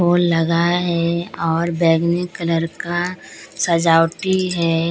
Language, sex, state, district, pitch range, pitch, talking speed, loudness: Hindi, female, Bihar, Katihar, 165-175 Hz, 170 Hz, 110 wpm, -18 LUFS